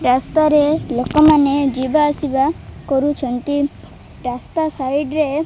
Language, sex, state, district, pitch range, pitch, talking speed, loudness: Odia, female, Odisha, Malkangiri, 265-305 Hz, 285 Hz, 100 wpm, -17 LUFS